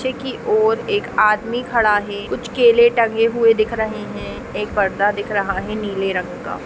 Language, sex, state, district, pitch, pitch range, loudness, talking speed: Hindi, female, Chhattisgarh, Raigarh, 225 Hz, 205-240 Hz, -18 LUFS, 200 wpm